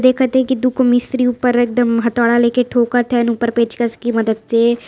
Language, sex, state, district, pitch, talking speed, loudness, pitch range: Hindi, female, Uttar Pradesh, Varanasi, 240 Hz, 195 wpm, -15 LUFS, 235-250 Hz